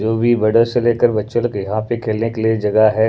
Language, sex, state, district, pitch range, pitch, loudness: Hindi, male, Punjab, Pathankot, 110-120 Hz, 110 Hz, -16 LUFS